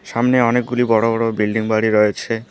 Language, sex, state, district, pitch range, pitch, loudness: Bengali, female, West Bengal, Alipurduar, 110-120 Hz, 115 Hz, -17 LUFS